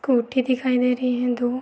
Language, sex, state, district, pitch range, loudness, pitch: Hindi, female, Uttar Pradesh, Gorakhpur, 245-255 Hz, -22 LUFS, 250 Hz